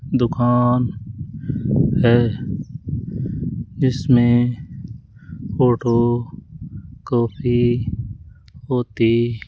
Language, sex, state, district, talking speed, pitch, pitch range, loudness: Hindi, male, Rajasthan, Jaipur, 45 wpm, 120 Hz, 115-125 Hz, -19 LUFS